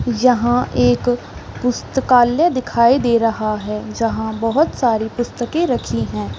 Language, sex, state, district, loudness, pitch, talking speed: Hindi, female, Chhattisgarh, Raigarh, -17 LUFS, 230 Hz, 120 wpm